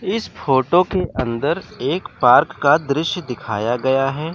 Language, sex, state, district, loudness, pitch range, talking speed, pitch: Hindi, male, Chandigarh, Chandigarh, -18 LUFS, 125-175 Hz, 150 wpm, 140 Hz